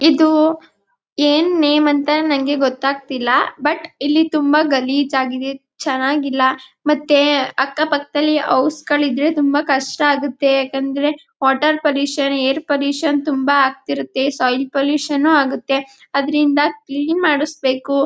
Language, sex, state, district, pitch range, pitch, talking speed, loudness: Kannada, female, Karnataka, Chamarajanagar, 270-300 Hz, 285 Hz, 105 wpm, -17 LUFS